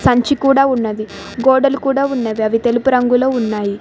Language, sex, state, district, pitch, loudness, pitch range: Telugu, female, Telangana, Mahabubabad, 250 Hz, -15 LUFS, 225-270 Hz